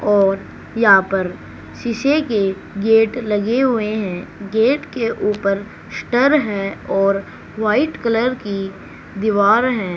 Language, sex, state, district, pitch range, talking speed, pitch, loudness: Hindi, female, Haryana, Charkhi Dadri, 195-235 Hz, 120 wpm, 210 Hz, -18 LUFS